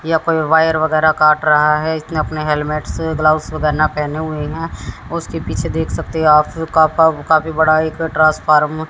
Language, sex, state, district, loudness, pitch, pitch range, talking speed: Hindi, female, Haryana, Jhajjar, -15 LUFS, 155 Hz, 150-160 Hz, 175 wpm